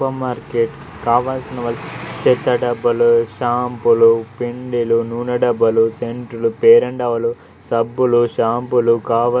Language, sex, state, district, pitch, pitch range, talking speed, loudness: Telugu, male, Telangana, Karimnagar, 120 Hz, 115-125 Hz, 115 wpm, -17 LUFS